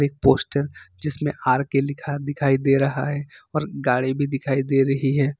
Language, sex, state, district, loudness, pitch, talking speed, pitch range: Hindi, male, Jharkhand, Ranchi, -22 LUFS, 140 Hz, 190 wpm, 135-145 Hz